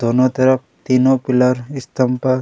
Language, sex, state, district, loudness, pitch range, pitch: Hindi, male, Chhattisgarh, Kabirdham, -16 LUFS, 125-130 Hz, 130 Hz